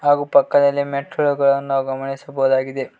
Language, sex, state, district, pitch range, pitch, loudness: Kannada, male, Karnataka, Koppal, 135-145 Hz, 140 Hz, -18 LUFS